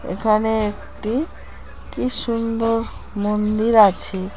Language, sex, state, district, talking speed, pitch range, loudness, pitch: Bengali, female, West Bengal, Kolkata, 80 wpm, 210-230 Hz, -19 LUFS, 215 Hz